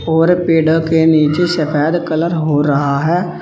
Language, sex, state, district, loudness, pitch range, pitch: Hindi, male, Uttar Pradesh, Saharanpur, -14 LUFS, 155-170 Hz, 160 Hz